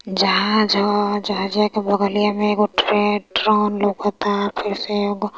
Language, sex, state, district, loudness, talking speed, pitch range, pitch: Hindi, female, Uttar Pradesh, Varanasi, -19 LUFS, 125 wpm, 205-210 Hz, 205 Hz